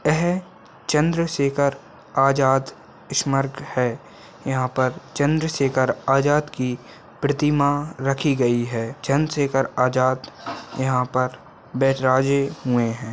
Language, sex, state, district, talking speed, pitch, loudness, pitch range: Hindi, male, Chhattisgarh, Balrampur, 95 wpm, 135 Hz, -22 LUFS, 130-145 Hz